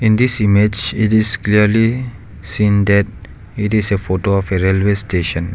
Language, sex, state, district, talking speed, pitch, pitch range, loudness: English, male, Arunachal Pradesh, Lower Dibang Valley, 170 wpm, 100 Hz, 95-110 Hz, -14 LUFS